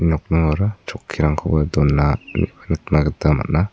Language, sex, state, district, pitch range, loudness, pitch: Garo, male, Meghalaya, South Garo Hills, 75-90 Hz, -19 LUFS, 80 Hz